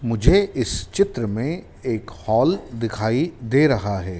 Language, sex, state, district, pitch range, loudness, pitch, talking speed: Hindi, male, Madhya Pradesh, Dhar, 110-145 Hz, -21 LUFS, 115 Hz, 140 wpm